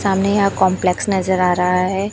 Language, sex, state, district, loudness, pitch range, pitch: Hindi, female, Chhattisgarh, Raipur, -17 LUFS, 180-195 Hz, 190 Hz